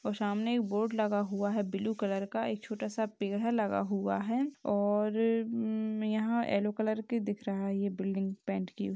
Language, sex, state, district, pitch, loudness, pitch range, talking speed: Hindi, female, Uttar Pradesh, Gorakhpur, 210 Hz, -33 LUFS, 200-220 Hz, 205 wpm